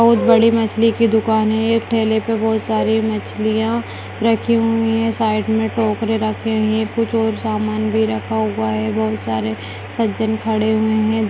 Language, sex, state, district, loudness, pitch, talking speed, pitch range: Kumaoni, female, Uttarakhand, Tehri Garhwal, -18 LUFS, 220 Hz, 185 wpm, 215-225 Hz